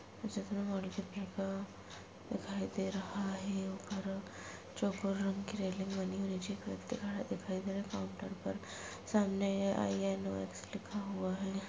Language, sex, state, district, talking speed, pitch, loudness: Hindi, female, Uttar Pradesh, Gorakhpur, 120 wpm, 195 Hz, -39 LUFS